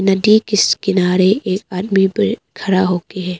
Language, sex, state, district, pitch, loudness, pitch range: Hindi, female, Arunachal Pradesh, Papum Pare, 190 Hz, -15 LUFS, 185-200 Hz